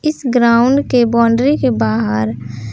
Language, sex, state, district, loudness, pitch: Hindi, female, Jharkhand, Palamu, -14 LUFS, 235 Hz